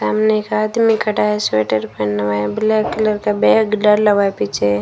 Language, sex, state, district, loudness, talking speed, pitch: Hindi, female, Rajasthan, Bikaner, -16 LUFS, 225 wpm, 210 Hz